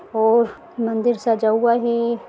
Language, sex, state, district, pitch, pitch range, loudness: Hindi, female, Bihar, Jahanabad, 235 Hz, 225-235 Hz, -19 LUFS